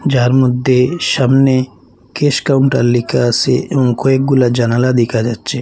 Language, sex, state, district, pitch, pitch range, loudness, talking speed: Bengali, male, Assam, Hailakandi, 130 Hz, 120-135 Hz, -13 LUFS, 130 wpm